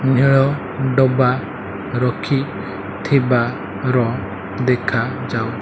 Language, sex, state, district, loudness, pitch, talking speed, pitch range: Odia, male, Odisha, Malkangiri, -19 LUFS, 125 Hz, 55 wpm, 100-135 Hz